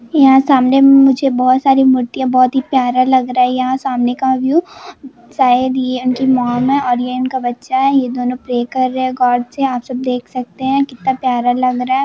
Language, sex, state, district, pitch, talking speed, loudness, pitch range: Hindi, female, Jharkhand, Jamtara, 255 Hz, 200 wpm, -14 LUFS, 250-265 Hz